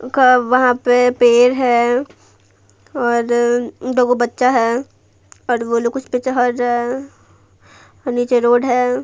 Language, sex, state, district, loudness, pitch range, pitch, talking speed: Hindi, female, Bihar, Patna, -15 LUFS, 235-250 Hz, 245 Hz, 125 wpm